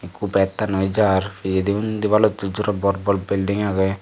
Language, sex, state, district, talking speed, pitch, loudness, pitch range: Chakma, male, Tripura, Dhalai, 165 wpm, 100 Hz, -20 LUFS, 95-105 Hz